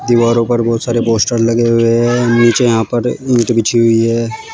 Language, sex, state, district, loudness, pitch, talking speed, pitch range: Hindi, male, Uttar Pradesh, Shamli, -12 LUFS, 115 Hz, 200 wpm, 115-120 Hz